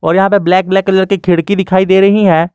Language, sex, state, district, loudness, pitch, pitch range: Hindi, male, Jharkhand, Garhwa, -10 LUFS, 190 Hz, 185-195 Hz